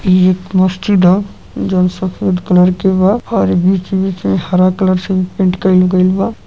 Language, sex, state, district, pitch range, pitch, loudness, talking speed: Bhojpuri, male, Uttar Pradesh, Gorakhpur, 185-190 Hz, 185 Hz, -13 LUFS, 185 wpm